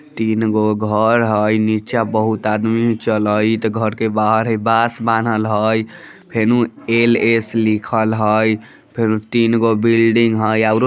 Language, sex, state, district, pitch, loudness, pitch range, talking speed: Bajjika, female, Bihar, Vaishali, 110 Hz, -16 LUFS, 110-115 Hz, 130 wpm